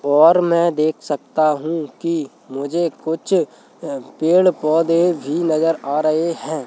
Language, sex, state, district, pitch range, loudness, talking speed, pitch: Hindi, male, Madhya Pradesh, Bhopal, 155-170 Hz, -18 LUFS, 145 wpm, 160 Hz